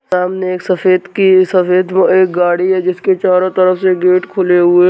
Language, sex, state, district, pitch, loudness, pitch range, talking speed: Hindi, female, Maharashtra, Dhule, 185 Hz, -12 LUFS, 180-185 Hz, 195 wpm